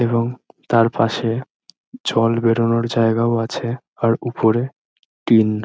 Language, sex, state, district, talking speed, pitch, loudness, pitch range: Bengali, male, West Bengal, Dakshin Dinajpur, 95 wpm, 115 Hz, -19 LUFS, 115-120 Hz